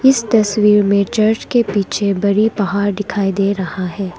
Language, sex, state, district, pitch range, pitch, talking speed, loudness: Hindi, female, Arunachal Pradesh, Longding, 195-215 Hz, 200 Hz, 170 wpm, -15 LUFS